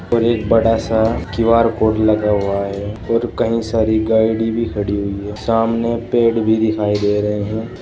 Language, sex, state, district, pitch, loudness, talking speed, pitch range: Hindi, male, Uttar Pradesh, Saharanpur, 110 Hz, -17 LUFS, 185 wpm, 105-115 Hz